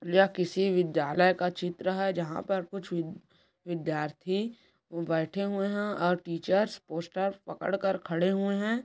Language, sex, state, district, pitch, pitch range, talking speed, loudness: Hindi, female, Chhattisgarh, Korba, 185 Hz, 170-195 Hz, 135 wpm, -30 LUFS